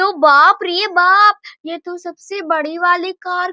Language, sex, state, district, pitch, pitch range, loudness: Hindi, female, Bihar, Bhagalpur, 360 Hz, 340-390 Hz, -13 LUFS